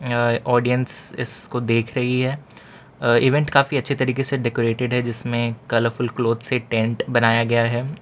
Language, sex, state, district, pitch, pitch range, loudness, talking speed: Hindi, male, Gujarat, Valsad, 120 Hz, 115-130 Hz, -21 LUFS, 165 wpm